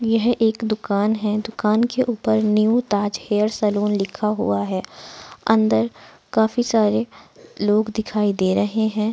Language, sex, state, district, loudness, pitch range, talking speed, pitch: Hindi, female, Bihar, Araria, -20 LUFS, 205-220 Hz, 145 wpm, 215 Hz